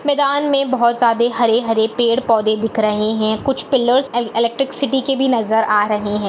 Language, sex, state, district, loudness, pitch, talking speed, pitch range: Hindi, female, Chhattisgarh, Balrampur, -14 LUFS, 235 Hz, 180 wpm, 220-265 Hz